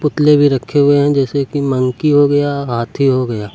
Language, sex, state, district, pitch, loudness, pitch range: Hindi, male, Uttar Pradesh, Lucknow, 140 Hz, -14 LUFS, 130-145 Hz